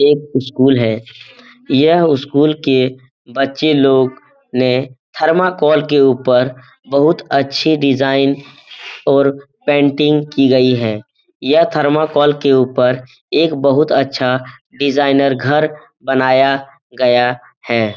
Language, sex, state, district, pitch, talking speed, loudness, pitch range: Hindi, male, Bihar, Jahanabad, 135 Hz, 115 wpm, -14 LUFS, 130-150 Hz